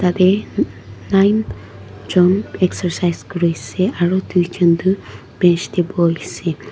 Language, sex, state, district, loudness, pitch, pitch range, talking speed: Nagamese, female, Nagaland, Dimapur, -17 LUFS, 175 Hz, 170-185 Hz, 100 wpm